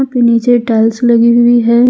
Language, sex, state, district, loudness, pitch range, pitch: Hindi, female, Jharkhand, Ranchi, -9 LUFS, 235-240 Hz, 235 Hz